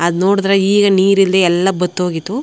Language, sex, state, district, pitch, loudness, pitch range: Kannada, female, Karnataka, Chamarajanagar, 190 Hz, -13 LUFS, 180-195 Hz